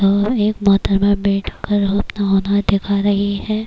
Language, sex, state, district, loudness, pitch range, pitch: Urdu, female, Bihar, Kishanganj, -17 LUFS, 200-205 Hz, 200 Hz